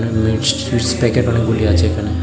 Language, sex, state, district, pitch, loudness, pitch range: Bengali, male, Tripura, West Tripura, 115 Hz, -16 LUFS, 105-120 Hz